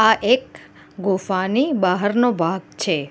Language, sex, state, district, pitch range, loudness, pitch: Gujarati, female, Gujarat, Valsad, 185-235 Hz, -20 LUFS, 200 Hz